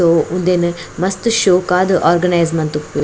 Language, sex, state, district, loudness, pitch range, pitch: Tulu, female, Karnataka, Dakshina Kannada, -15 LUFS, 170-185 Hz, 175 Hz